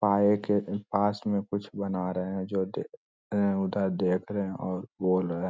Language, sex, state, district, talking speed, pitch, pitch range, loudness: Magahi, male, Bihar, Lakhisarai, 195 wpm, 100 Hz, 95-100 Hz, -29 LUFS